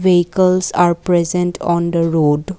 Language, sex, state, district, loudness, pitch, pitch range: English, female, Assam, Kamrup Metropolitan, -15 LUFS, 175 Hz, 170-185 Hz